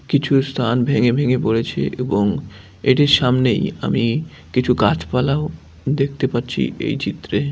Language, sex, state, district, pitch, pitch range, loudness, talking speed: Bengali, male, West Bengal, Dakshin Dinajpur, 125 Hz, 120-140 Hz, -19 LUFS, 120 wpm